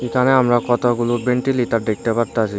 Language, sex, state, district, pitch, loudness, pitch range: Bengali, male, Tripura, Unakoti, 120 Hz, -18 LUFS, 115-125 Hz